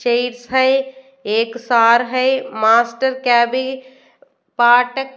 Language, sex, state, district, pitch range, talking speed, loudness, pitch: Hindi, female, Bihar, Katihar, 235-265 Hz, 95 wpm, -16 LUFS, 250 Hz